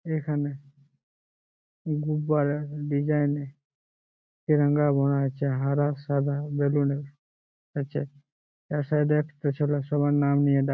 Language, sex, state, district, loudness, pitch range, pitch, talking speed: Bengali, male, West Bengal, Jalpaiguri, -26 LUFS, 140-150 Hz, 145 Hz, 105 wpm